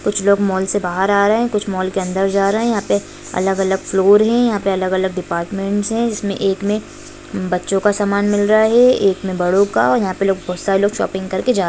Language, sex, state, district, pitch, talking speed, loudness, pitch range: Hindi, female, Bihar, Jahanabad, 195 Hz, 255 wpm, -16 LUFS, 190-205 Hz